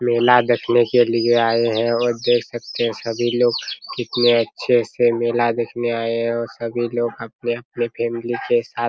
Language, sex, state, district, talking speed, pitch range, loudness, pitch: Hindi, male, Bihar, Araria, 175 wpm, 115-120 Hz, -19 LUFS, 120 Hz